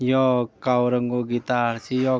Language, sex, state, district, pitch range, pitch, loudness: Garhwali, male, Uttarakhand, Tehri Garhwal, 120-130 Hz, 125 Hz, -23 LUFS